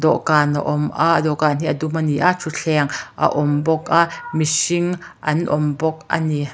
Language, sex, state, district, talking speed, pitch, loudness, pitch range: Mizo, female, Mizoram, Aizawl, 200 wpm, 155 Hz, -19 LUFS, 150-160 Hz